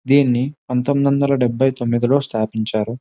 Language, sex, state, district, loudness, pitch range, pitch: Telugu, male, Telangana, Nalgonda, -18 LUFS, 120-140 Hz, 125 Hz